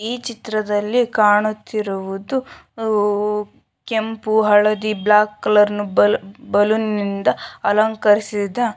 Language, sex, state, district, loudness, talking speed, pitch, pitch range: Kannada, female, Karnataka, Shimoga, -18 LUFS, 95 wpm, 210 Hz, 205-220 Hz